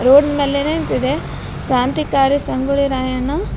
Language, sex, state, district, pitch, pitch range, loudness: Kannada, female, Karnataka, Raichur, 280 Hz, 260-285 Hz, -17 LUFS